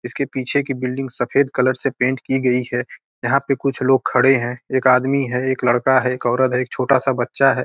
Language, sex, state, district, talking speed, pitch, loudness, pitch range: Hindi, male, Bihar, Gopalganj, 245 wpm, 130 Hz, -19 LUFS, 125-135 Hz